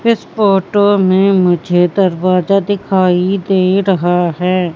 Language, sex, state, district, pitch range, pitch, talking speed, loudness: Hindi, female, Madhya Pradesh, Katni, 180-195 Hz, 185 Hz, 115 wpm, -12 LUFS